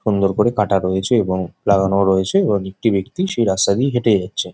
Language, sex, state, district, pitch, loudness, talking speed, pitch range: Bengali, male, West Bengal, Jhargram, 100 Hz, -17 LUFS, 200 wpm, 95-115 Hz